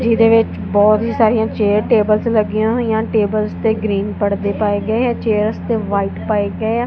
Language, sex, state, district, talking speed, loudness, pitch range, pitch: Punjabi, female, Punjab, Kapurthala, 185 wpm, -16 LUFS, 210-225 Hz, 215 Hz